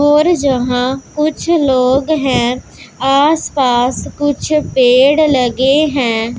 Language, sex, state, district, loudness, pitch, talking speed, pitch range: Hindi, female, Punjab, Pathankot, -13 LUFS, 270 Hz, 115 wpm, 250-300 Hz